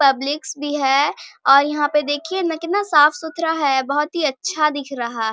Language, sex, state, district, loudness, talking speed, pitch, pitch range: Hindi, female, Bihar, Bhagalpur, -19 LUFS, 190 wpm, 295 Hz, 275-320 Hz